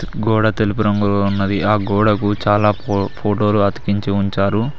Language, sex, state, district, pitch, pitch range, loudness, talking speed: Telugu, male, Telangana, Mahabubabad, 105 Hz, 100-105 Hz, -17 LUFS, 140 wpm